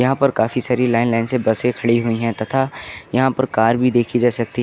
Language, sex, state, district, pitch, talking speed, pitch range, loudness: Hindi, male, Uttar Pradesh, Lucknow, 120 Hz, 260 wpm, 115-125 Hz, -18 LUFS